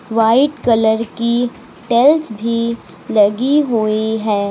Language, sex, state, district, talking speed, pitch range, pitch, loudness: Hindi, female, Uttar Pradesh, Lucknow, 105 wpm, 220-240 Hz, 230 Hz, -15 LUFS